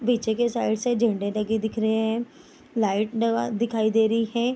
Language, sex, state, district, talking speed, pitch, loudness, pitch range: Hindi, female, Bihar, Bhagalpur, 185 wpm, 225 Hz, -24 LUFS, 220-240 Hz